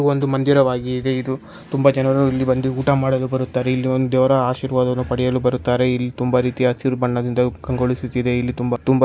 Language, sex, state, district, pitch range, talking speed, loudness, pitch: Kannada, male, Karnataka, Chamarajanagar, 125-130 Hz, 175 wpm, -19 LUFS, 130 Hz